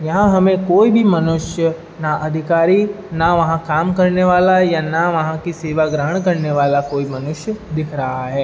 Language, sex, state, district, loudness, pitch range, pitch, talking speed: Hindi, male, Uttar Pradesh, Budaun, -16 LUFS, 155-185 Hz, 165 Hz, 175 wpm